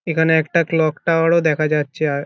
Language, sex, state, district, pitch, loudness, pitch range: Bengali, male, West Bengal, Kolkata, 160 Hz, -17 LUFS, 155-165 Hz